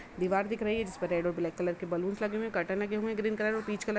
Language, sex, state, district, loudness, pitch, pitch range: Hindi, female, Uttar Pradesh, Budaun, -32 LUFS, 205 Hz, 180-215 Hz